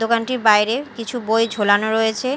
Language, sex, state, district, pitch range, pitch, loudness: Bengali, female, Odisha, Malkangiri, 220-245 Hz, 230 Hz, -18 LUFS